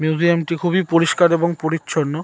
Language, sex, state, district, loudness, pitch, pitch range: Bengali, male, West Bengal, North 24 Parganas, -18 LUFS, 165 Hz, 160-170 Hz